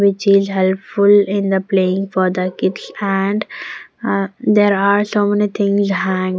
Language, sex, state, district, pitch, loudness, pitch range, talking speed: English, female, Punjab, Pathankot, 200 Hz, -16 LUFS, 190-205 Hz, 160 wpm